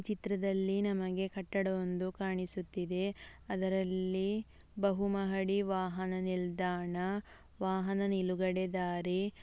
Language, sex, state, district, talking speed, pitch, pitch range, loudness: Kannada, female, Karnataka, Mysore, 90 wpm, 190 Hz, 185-195 Hz, -35 LUFS